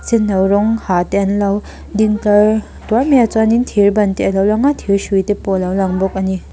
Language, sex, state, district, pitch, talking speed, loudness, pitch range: Mizo, female, Mizoram, Aizawl, 205 Hz, 220 wpm, -15 LUFS, 195-220 Hz